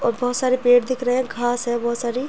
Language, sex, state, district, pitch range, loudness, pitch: Hindi, female, Uttar Pradesh, Jyotiba Phule Nagar, 240-255 Hz, -20 LUFS, 245 Hz